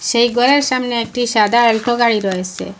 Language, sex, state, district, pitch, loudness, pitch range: Bengali, female, Assam, Hailakandi, 235 Hz, -15 LUFS, 220-245 Hz